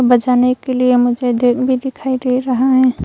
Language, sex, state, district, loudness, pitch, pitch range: Hindi, female, Arunachal Pradesh, Longding, -15 LUFS, 250 Hz, 245-260 Hz